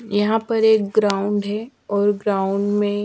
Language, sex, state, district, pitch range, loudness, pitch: Hindi, female, Madhya Pradesh, Dhar, 205-220 Hz, -20 LUFS, 205 Hz